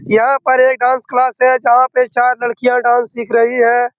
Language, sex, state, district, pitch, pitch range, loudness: Hindi, male, Bihar, Araria, 245 Hz, 240-255 Hz, -13 LUFS